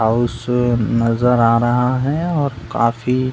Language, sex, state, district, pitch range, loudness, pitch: Hindi, male, Uttar Pradesh, Budaun, 115-130 Hz, -17 LUFS, 120 Hz